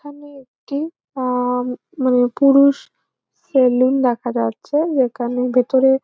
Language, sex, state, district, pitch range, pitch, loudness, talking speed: Bengali, female, West Bengal, Jhargram, 250-280 Hz, 260 Hz, -18 LUFS, 110 wpm